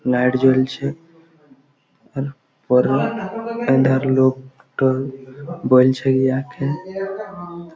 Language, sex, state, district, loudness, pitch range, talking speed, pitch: Bengali, male, West Bengal, Malda, -19 LUFS, 130-165 Hz, 60 wpm, 135 Hz